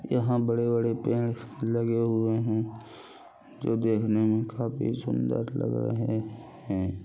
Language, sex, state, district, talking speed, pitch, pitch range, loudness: Hindi, male, Chhattisgarh, Balrampur, 120 wpm, 115 Hz, 110-115 Hz, -28 LUFS